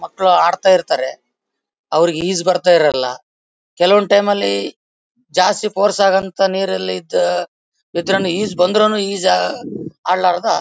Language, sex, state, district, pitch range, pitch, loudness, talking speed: Kannada, male, Karnataka, Bellary, 165-200 Hz, 185 Hz, -16 LUFS, 115 wpm